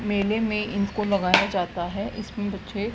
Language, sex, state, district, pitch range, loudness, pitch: Hindi, female, Haryana, Rohtak, 200-210 Hz, -25 LUFS, 205 Hz